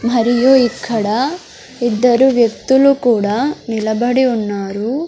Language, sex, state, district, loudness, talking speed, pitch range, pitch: Telugu, male, Andhra Pradesh, Sri Satya Sai, -14 LUFS, 85 wpm, 220-260 Hz, 240 Hz